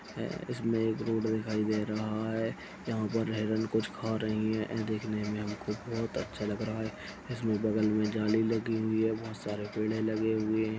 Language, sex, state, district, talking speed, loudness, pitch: Hindi, male, Chhattisgarh, Sarguja, 190 wpm, -32 LUFS, 110 Hz